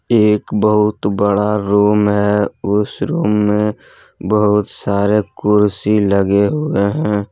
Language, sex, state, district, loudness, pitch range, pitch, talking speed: Hindi, male, Jharkhand, Deoghar, -15 LUFS, 100-105 Hz, 105 Hz, 115 wpm